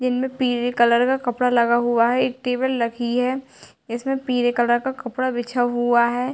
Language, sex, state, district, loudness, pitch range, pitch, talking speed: Hindi, female, Bihar, Sitamarhi, -21 LUFS, 240-255 Hz, 245 Hz, 200 wpm